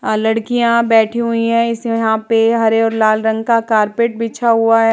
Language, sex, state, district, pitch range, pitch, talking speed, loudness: Hindi, female, Uttar Pradesh, Jalaun, 220-230 Hz, 225 Hz, 180 wpm, -14 LUFS